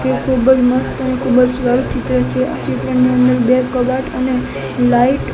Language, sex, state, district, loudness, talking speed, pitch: Gujarati, male, Gujarat, Gandhinagar, -15 LUFS, 200 wpm, 250 Hz